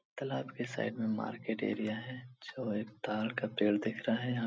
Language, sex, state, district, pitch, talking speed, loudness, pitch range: Hindi, male, Bihar, Supaul, 110 Hz, 200 wpm, -36 LUFS, 105-120 Hz